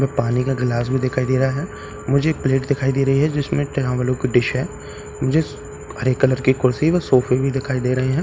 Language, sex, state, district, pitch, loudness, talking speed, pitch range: Hindi, male, Bihar, Katihar, 130 Hz, -19 LUFS, 235 wpm, 125-140 Hz